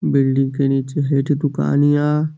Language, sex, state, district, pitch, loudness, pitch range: Bhojpuri, male, Uttar Pradesh, Gorakhpur, 145 Hz, -18 LUFS, 135-145 Hz